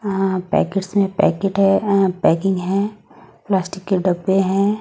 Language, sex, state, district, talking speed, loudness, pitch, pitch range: Hindi, female, Odisha, Nuapada, 150 wpm, -18 LUFS, 195 Hz, 185-200 Hz